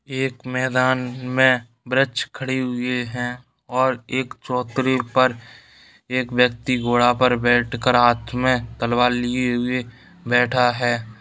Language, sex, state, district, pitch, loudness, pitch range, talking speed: Hindi, male, Bihar, Darbhanga, 125 Hz, -20 LUFS, 120-130 Hz, 140 wpm